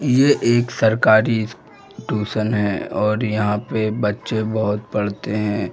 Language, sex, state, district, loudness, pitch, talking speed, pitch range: Hindi, male, Bihar, Jamui, -19 LUFS, 110 Hz, 125 wpm, 105-110 Hz